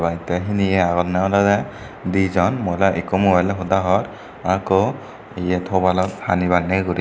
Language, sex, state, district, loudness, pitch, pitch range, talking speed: Chakma, male, Tripura, Dhalai, -19 LUFS, 95 Hz, 90-95 Hz, 160 wpm